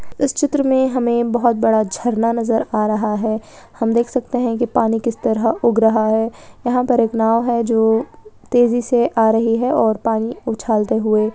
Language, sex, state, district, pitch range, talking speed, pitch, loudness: Hindi, female, Chhattisgarh, Balrampur, 220-240 Hz, 195 wpm, 230 Hz, -17 LUFS